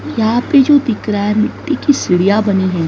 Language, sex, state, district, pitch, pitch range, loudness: Hindi, female, Maharashtra, Mumbai Suburban, 220 Hz, 200-275 Hz, -13 LUFS